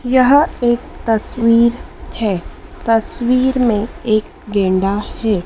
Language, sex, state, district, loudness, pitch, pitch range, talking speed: Hindi, female, Madhya Pradesh, Dhar, -16 LUFS, 230 Hz, 210-245 Hz, 100 wpm